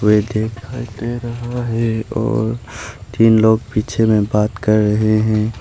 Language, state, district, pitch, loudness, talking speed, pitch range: Hindi, Arunachal Pradesh, Papum Pare, 110 Hz, -17 LUFS, 95 wpm, 110-115 Hz